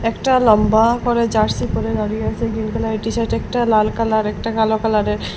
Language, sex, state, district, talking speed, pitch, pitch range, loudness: Bengali, female, Assam, Hailakandi, 180 wpm, 220 Hz, 215-230 Hz, -17 LUFS